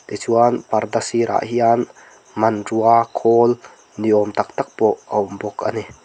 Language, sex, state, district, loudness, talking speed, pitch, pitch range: Mizo, male, Mizoram, Aizawl, -18 LUFS, 150 wpm, 115 Hz, 110-120 Hz